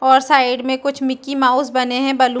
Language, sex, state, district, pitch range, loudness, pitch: Hindi, female, Chhattisgarh, Bastar, 255-270 Hz, -16 LUFS, 260 Hz